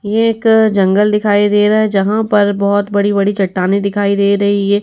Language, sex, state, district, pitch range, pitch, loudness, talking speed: Hindi, female, Uttar Pradesh, Etah, 200-210 Hz, 205 Hz, -13 LUFS, 225 wpm